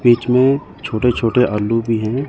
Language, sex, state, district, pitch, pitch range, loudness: Hindi, male, Chandigarh, Chandigarh, 120 Hz, 115-130 Hz, -16 LUFS